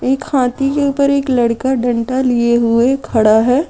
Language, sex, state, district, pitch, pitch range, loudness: Hindi, female, Jharkhand, Deoghar, 255 Hz, 235-270 Hz, -14 LUFS